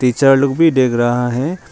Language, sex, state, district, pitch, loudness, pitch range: Hindi, male, Arunachal Pradesh, Longding, 130 Hz, -14 LUFS, 125-140 Hz